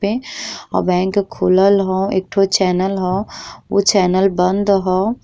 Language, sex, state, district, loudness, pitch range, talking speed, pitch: Bhojpuri, female, Bihar, East Champaran, -16 LUFS, 185-200 Hz, 160 wpm, 195 Hz